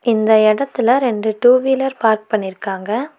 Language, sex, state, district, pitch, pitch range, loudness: Tamil, female, Tamil Nadu, Nilgiris, 225 Hz, 215-260 Hz, -16 LUFS